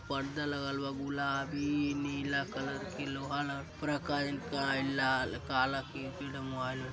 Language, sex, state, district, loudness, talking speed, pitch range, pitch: Hindi, male, Uttar Pradesh, Gorakhpur, -35 LUFS, 165 wpm, 135-145 Hz, 140 Hz